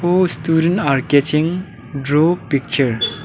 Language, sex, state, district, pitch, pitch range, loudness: English, male, Arunachal Pradesh, Lower Dibang Valley, 150 Hz, 140-170 Hz, -17 LUFS